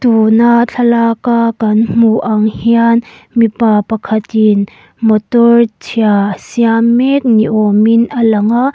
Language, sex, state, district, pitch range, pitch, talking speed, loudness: Mizo, female, Mizoram, Aizawl, 220-235 Hz, 230 Hz, 130 wpm, -11 LUFS